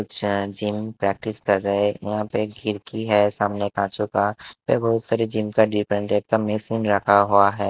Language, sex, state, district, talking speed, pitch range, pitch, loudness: Hindi, male, Himachal Pradesh, Shimla, 195 wpm, 100-110 Hz, 105 Hz, -22 LUFS